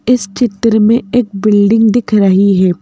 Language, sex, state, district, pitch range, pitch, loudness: Hindi, female, Madhya Pradesh, Bhopal, 200-235 Hz, 215 Hz, -11 LUFS